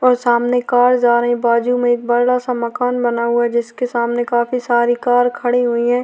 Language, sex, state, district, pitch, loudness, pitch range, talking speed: Hindi, female, Bihar, Vaishali, 240 Hz, -16 LUFS, 240-245 Hz, 230 wpm